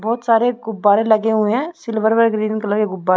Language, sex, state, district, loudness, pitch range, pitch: Hindi, female, Chhattisgarh, Rajnandgaon, -17 LUFS, 210-230 Hz, 220 Hz